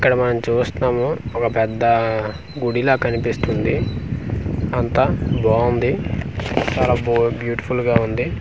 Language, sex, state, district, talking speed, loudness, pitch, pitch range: Telugu, male, Andhra Pradesh, Manyam, 120 wpm, -19 LUFS, 120 Hz, 115-120 Hz